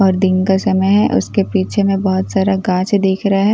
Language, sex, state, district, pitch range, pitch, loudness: Hindi, female, Bihar, Katihar, 190-200 Hz, 195 Hz, -15 LUFS